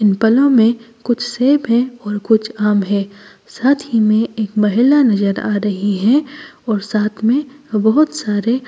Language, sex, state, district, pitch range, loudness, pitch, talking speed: Hindi, female, Delhi, New Delhi, 210-255 Hz, -15 LUFS, 225 Hz, 165 wpm